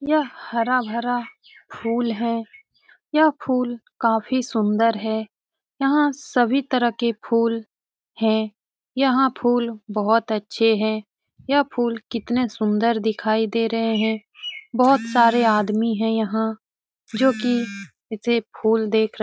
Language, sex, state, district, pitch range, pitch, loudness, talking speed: Hindi, male, Bihar, Jamui, 220-250 Hz, 230 Hz, -21 LUFS, 130 wpm